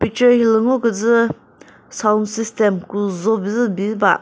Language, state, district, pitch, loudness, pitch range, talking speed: Chakhesang, Nagaland, Dimapur, 220 Hz, -17 LUFS, 205-235 Hz, 140 wpm